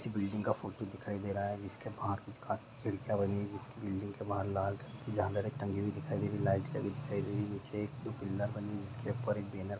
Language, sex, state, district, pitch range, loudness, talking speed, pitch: Hindi, male, Bihar, Sitamarhi, 100-110 Hz, -38 LUFS, 270 wpm, 105 Hz